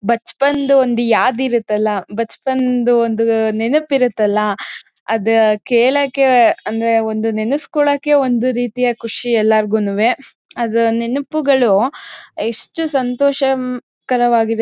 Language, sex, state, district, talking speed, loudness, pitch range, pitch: Kannada, female, Karnataka, Mysore, 100 wpm, -16 LUFS, 225-265 Hz, 240 Hz